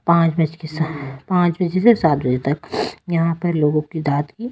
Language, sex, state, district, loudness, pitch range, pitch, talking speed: Hindi, female, Delhi, New Delhi, -19 LUFS, 150-175 Hz, 160 Hz, 200 wpm